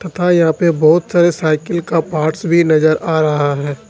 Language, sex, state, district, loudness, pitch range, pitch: Hindi, male, Jharkhand, Ranchi, -14 LUFS, 155-170 Hz, 160 Hz